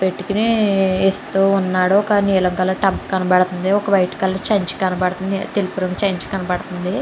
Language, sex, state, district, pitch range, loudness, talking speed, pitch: Telugu, female, Andhra Pradesh, Chittoor, 185-200 Hz, -18 LUFS, 155 wpm, 190 Hz